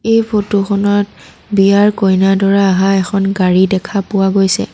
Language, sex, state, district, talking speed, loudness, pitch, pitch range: Assamese, female, Assam, Sonitpur, 150 wpm, -12 LUFS, 195 Hz, 195-205 Hz